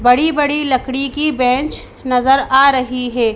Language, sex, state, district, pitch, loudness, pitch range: Hindi, female, Madhya Pradesh, Bhopal, 265 Hz, -14 LUFS, 250-280 Hz